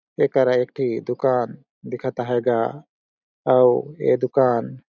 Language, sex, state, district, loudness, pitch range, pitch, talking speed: Surgujia, male, Chhattisgarh, Sarguja, -21 LUFS, 120-130 Hz, 125 Hz, 125 wpm